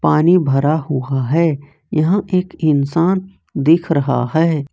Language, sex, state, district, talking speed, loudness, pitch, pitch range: Hindi, male, Jharkhand, Ranchi, 125 wpm, -16 LUFS, 155 Hz, 140-170 Hz